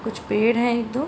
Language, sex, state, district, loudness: Hindi, female, Uttar Pradesh, Hamirpur, -21 LUFS